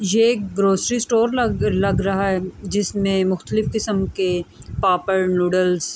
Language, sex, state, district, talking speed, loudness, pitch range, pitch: Urdu, female, Andhra Pradesh, Anantapur, 150 wpm, -20 LUFS, 185-205 Hz, 195 Hz